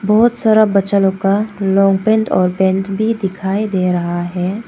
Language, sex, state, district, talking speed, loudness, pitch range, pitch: Hindi, female, Arunachal Pradesh, Papum Pare, 180 wpm, -15 LUFS, 190-215 Hz, 195 Hz